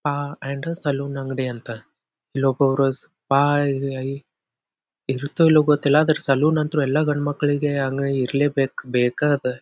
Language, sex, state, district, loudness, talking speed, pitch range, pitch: Kannada, male, Karnataka, Dharwad, -21 LUFS, 125 wpm, 135-145 Hz, 140 Hz